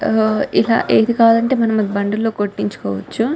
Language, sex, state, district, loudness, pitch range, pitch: Telugu, female, Telangana, Nalgonda, -16 LUFS, 200-230 Hz, 220 Hz